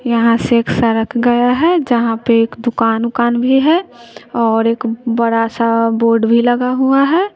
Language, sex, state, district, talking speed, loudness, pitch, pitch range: Hindi, female, Bihar, West Champaran, 180 wpm, -14 LUFS, 235 Hz, 230-245 Hz